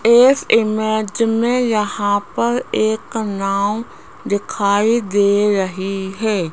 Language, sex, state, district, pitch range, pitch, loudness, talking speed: Hindi, female, Rajasthan, Jaipur, 200-225 Hz, 215 Hz, -17 LUFS, 100 wpm